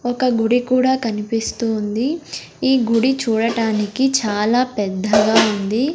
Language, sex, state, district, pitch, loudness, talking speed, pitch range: Telugu, female, Andhra Pradesh, Sri Satya Sai, 230 Hz, -18 LUFS, 110 wpm, 215-255 Hz